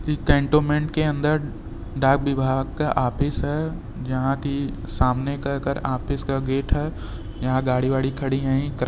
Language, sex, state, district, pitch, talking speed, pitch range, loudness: Hindi, male, Uttar Pradesh, Varanasi, 135 Hz, 150 wpm, 130-145 Hz, -23 LUFS